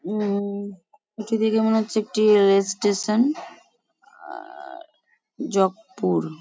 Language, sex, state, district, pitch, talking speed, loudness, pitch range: Bengali, female, West Bengal, Paschim Medinipur, 215 Hz, 95 wpm, -22 LUFS, 200-285 Hz